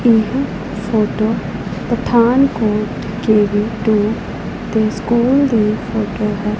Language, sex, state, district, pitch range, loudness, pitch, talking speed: Punjabi, female, Punjab, Pathankot, 210-235 Hz, -16 LUFS, 220 Hz, 65 wpm